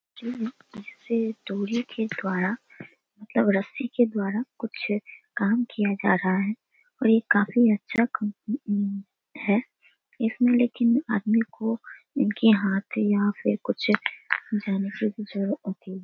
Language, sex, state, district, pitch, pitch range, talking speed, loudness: Hindi, female, Bihar, Darbhanga, 220 Hz, 205-235 Hz, 120 wpm, -26 LUFS